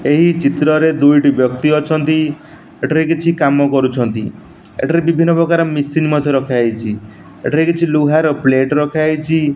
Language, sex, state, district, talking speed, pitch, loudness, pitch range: Odia, male, Odisha, Nuapada, 115 wpm, 150 Hz, -14 LUFS, 140-160 Hz